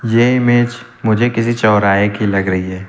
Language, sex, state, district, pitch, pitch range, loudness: Hindi, male, Uttar Pradesh, Lucknow, 110 Hz, 100-120 Hz, -14 LUFS